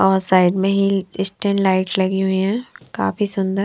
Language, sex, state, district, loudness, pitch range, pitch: Hindi, female, Himachal Pradesh, Shimla, -19 LUFS, 190-195 Hz, 190 Hz